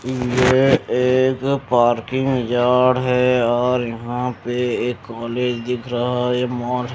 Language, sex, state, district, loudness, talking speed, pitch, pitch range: Hindi, male, Chandigarh, Chandigarh, -19 LUFS, 130 wpm, 125 Hz, 120-125 Hz